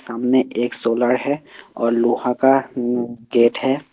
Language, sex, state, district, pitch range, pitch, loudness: Hindi, male, Assam, Kamrup Metropolitan, 120-130 Hz, 120 Hz, -19 LUFS